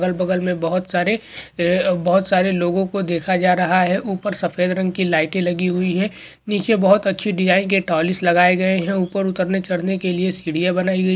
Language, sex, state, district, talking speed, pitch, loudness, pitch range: Hindi, male, West Bengal, Kolkata, 210 wpm, 185 Hz, -19 LUFS, 180-190 Hz